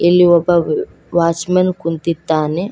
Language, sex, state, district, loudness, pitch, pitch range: Kannada, female, Karnataka, Koppal, -15 LUFS, 170 Hz, 165-180 Hz